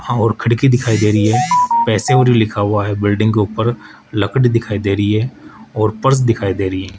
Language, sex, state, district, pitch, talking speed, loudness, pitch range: Hindi, male, Rajasthan, Jaipur, 110 Hz, 215 wpm, -15 LUFS, 105-120 Hz